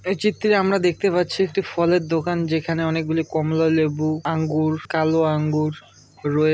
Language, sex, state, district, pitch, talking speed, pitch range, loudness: Bengali, male, West Bengal, Malda, 160 Hz, 145 wpm, 155-180 Hz, -21 LUFS